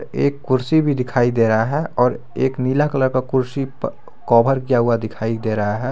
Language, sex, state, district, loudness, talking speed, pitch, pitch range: Hindi, male, Jharkhand, Garhwa, -19 LUFS, 205 wpm, 130 Hz, 115-135 Hz